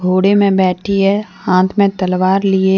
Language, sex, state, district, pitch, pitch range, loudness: Hindi, female, Jharkhand, Deoghar, 190 Hz, 185-200 Hz, -14 LUFS